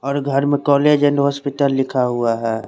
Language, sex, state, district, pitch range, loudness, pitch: Hindi, male, Chandigarh, Chandigarh, 125-140 Hz, -17 LUFS, 140 Hz